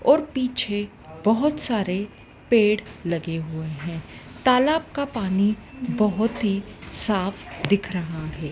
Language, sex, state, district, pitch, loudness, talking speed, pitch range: Hindi, female, Madhya Pradesh, Dhar, 205 Hz, -24 LUFS, 120 wpm, 170-240 Hz